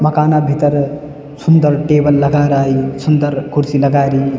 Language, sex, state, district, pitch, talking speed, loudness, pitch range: Garhwali, male, Uttarakhand, Tehri Garhwal, 145 Hz, 135 wpm, -13 LUFS, 140-150 Hz